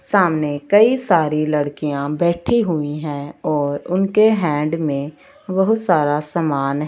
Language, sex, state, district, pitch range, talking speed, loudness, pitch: Hindi, female, Punjab, Fazilka, 145-190 Hz, 120 wpm, -18 LUFS, 155 Hz